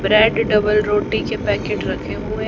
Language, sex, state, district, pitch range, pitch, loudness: Hindi, female, Haryana, Jhajjar, 210-215 Hz, 210 Hz, -18 LUFS